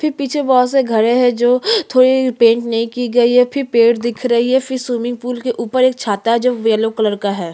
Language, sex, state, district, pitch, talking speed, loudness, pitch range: Hindi, female, Chhattisgarh, Sukma, 245 Hz, 255 wpm, -15 LUFS, 230-255 Hz